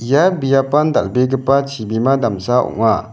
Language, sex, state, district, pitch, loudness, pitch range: Garo, male, Meghalaya, South Garo Hills, 135 Hz, -16 LUFS, 120-140 Hz